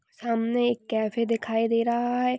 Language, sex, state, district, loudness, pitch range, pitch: Hindi, female, Maharashtra, Nagpur, -26 LUFS, 225-240 Hz, 230 Hz